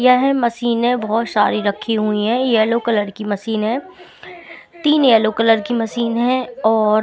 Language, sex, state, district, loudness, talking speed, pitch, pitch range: Hindi, female, Bihar, Patna, -17 LUFS, 160 wpm, 230 Hz, 220-255 Hz